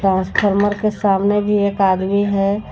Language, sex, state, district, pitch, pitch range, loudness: Hindi, female, Jharkhand, Garhwa, 200 Hz, 195-205 Hz, -17 LUFS